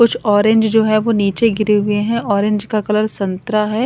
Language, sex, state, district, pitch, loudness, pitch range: Hindi, female, Punjab, Kapurthala, 215 Hz, -15 LUFS, 205-220 Hz